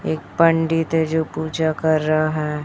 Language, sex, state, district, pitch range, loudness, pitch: Hindi, female, Chhattisgarh, Raipur, 155-160 Hz, -19 LUFS, 160 Hz